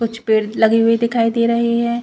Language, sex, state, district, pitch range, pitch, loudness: Hindi, female, Chhattisgarh, Bilaspur, 225-235 Hz, 230 Hz, -16 LUFS